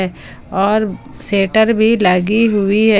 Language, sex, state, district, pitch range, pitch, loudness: Hindi, female, Jharkhand, Palamu, 195-220 Hz, 210 Hz, -14 LUFS